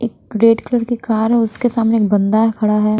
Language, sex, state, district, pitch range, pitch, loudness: Hindi, female, Bihar, Patna, 215-235 Hz, 225 Hz, -15 LUFS